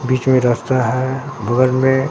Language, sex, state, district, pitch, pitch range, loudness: Hindi, male, Bihar, Katihar, 130 Hz, 125-130 Hz, -16 LUFS